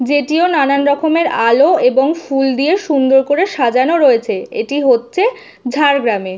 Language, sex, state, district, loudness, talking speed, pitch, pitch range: Bengali, female, West Bengal, Jhargram, -13 LUFS, 130 wpm, 285 Hz, 260-335 Hz